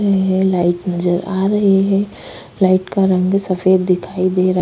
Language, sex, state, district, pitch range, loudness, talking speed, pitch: Hindi, female, Goa, North and South Goa, 180-195 Hz, -16 LUFS, 180 wpm, 185 Hz